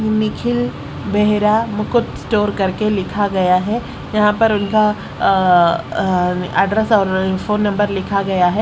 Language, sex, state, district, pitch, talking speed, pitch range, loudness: Hindi, female, Odisha, Sambalpur, 200 Hz, 130 wpm, 180-210 Hz, -16 LUFS